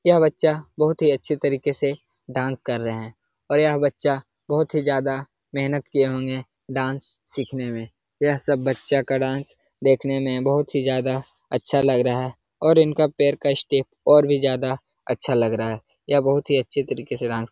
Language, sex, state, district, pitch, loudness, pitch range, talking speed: Hindi, male, Uttar Pradesh, Jalaun, 135 Hz, -22 LUFS, 130-145 Hz, 195 wpm